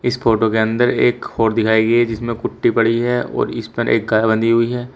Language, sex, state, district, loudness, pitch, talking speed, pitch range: Hindi, male, Uttar Pradesh, Shamli, -17 LUFS, 115 Hz, 255 wpm, 110-120 Hz